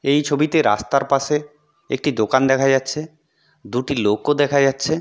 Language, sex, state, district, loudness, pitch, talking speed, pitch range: Bengali, male, West Bengal, Purulia, -19 LUFS, 140 Hz, 155 wpm, 135-150 Hz